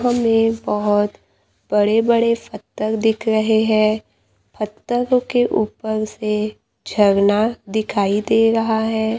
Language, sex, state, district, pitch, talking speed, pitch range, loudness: Hindi, female, Maharashtra, Gondia, 220 Hz, 110 wpm, 210-225 Hz, -18 LUFS